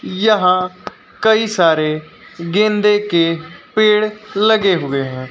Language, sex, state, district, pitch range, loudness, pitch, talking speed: Hindi, male, Uttar Pradesh, Lucknow, 165-215 Hz, -15 LUFS, 195 Hz, 100 wpm